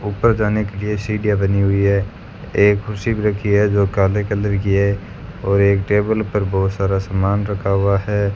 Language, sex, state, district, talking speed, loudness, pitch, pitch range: Hindi, male, Rajasthan, Bikaner, 200 wpm, -18 LUFS, 100 Hz, 100-105 Hz